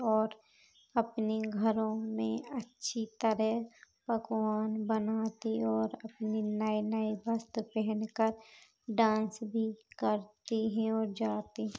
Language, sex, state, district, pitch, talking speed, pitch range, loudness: Hindi, male, Uttar Pradesh, Hamirpur, 220 Hz, 95 wpm, 215-225 Hz, -34 LUFS